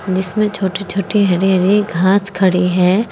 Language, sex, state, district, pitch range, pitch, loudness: Hindi, female, Uttar Pradesh, Saharanpur, 185-205 Hz, 190 Hz, -15 LUFS